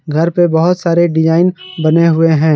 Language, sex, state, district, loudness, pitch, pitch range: Hindi, male, Jharkhand, Garhwa, -12 LUFS, 165 Hz, 160-175 Hz